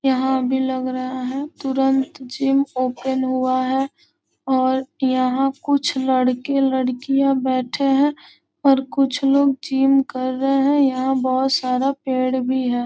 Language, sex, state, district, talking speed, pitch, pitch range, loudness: Hindi, female, Bihar, Gopalganj, 135 wpm, 265 Hz, 255-275 Hz, -20 LUFS